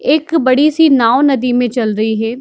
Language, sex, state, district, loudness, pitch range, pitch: Hindi, female, Bihar, Darbhanga, -12 LUFS, 230-290 Hz, 255 Hz